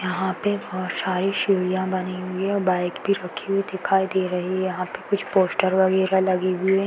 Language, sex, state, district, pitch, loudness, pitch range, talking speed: Hindi, female, Uttar Pradesh, Varanasi, 185 Hz, -23 LUFS, 185-195 Hz, 225 wpm